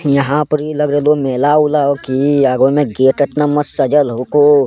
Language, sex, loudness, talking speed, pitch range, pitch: Angika, male, -13 LUFS, 190 wpm, 135-150 Hz, 145 Hz